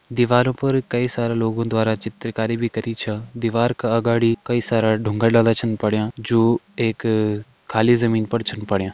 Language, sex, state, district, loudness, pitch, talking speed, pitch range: Hindi, male, Uttarakhand, Tehri Garhwal, -20 LUFS, 115 Hz, 175 wpm, 110-120 Hz